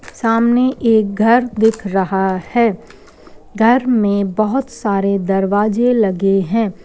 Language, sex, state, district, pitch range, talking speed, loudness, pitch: Hindi, female, Uttar Pradesh, Ghazipur, 195-235 Hz, 115 wpm, -15 LUFS, 215 Hz